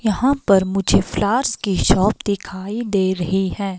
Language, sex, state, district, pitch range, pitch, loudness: Hindi, female, Himachal Pradesh, Shimla, 190-220 Hz, 200 Hz, -19 LUFS